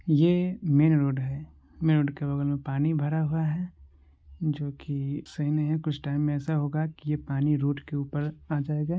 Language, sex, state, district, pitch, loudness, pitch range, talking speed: Maithili, male, Bihar, Supaul, 150 Hz, -28 LUFS, 140-155 Hz, 205 wpm